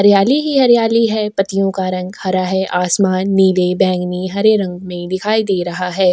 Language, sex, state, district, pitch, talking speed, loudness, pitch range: Hindi, female, Goa, North and South Goa, 190 Hz, 185 wpm, -15 LUFS, 185-210 Hz